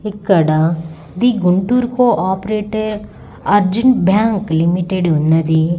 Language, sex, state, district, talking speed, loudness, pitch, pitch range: Telugu, male, Andhra Pradesh, Guntur, 95 wpm, -15 LUFS, 190 Hz, 165-215 Hz